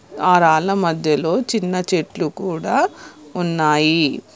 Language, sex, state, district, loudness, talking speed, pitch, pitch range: Telugu, female, Telangana, Hyderabad, -18 LUFS, 95 wpm, 180 Hz, 160-195 Hz